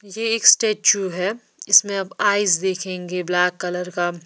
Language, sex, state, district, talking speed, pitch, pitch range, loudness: Hindi, female, Chhattisgarh, Raipur, 155 wpm, 190 Hz, 180-205 Hz, -19 LUFS